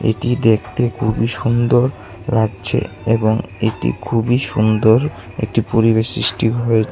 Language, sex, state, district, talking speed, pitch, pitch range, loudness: Bengali, male, Tripura, West Tripura, 115 wpm, 115 Hz, 110-120 Hz, -17 LUFS